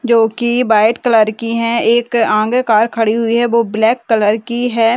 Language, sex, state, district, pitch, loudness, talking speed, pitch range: Hindi, female, Bihar, Madhepura, 230 Hz, -13 LUFS, 205 wpm, 220-235 Hz